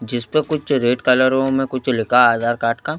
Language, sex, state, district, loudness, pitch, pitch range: Hindi, male, Madhya Pradesh, Bhopal, -17 LUFS, 130 Hz, 120-135 Hz